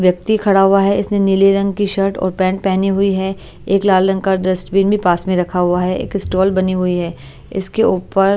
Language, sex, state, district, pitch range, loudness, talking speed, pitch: Hindi, female, Odisha, Malkangiri, 185-195 Hz, -15 LUFS, 235 wpm, 190 Hz